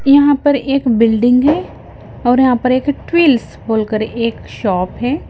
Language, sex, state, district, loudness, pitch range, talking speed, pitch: Hindi, female, Himachal Pradesh, Shimla, -14 LUFS, 230-285 Hz, 170 wpm, 255 Hz